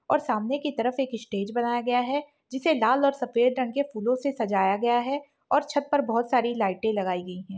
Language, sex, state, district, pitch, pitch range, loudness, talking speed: Hindi, female, Bihar, Saharsa, 245 Hz, 220-280 Hz, -26 LUFS, 215 wpm